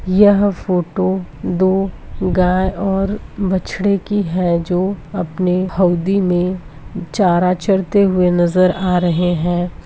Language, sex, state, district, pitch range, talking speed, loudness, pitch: Hindi, female, Bihar, Purnia, 175-195 Hz, 120 wpm, -16 LUFS, 185 Hz